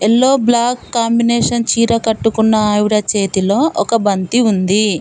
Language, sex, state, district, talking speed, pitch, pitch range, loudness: Telugu, female, Telangana, Komaram Bheem, 120 wpm, 225 Hz, 210-235 Hz, -14 LUFS